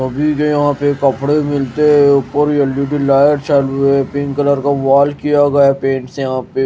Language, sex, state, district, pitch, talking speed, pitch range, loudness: Hindi, male, Odisha, Malkangiri, 140 Hz, 180 wpm, 135-145 Hz, -13 LUFS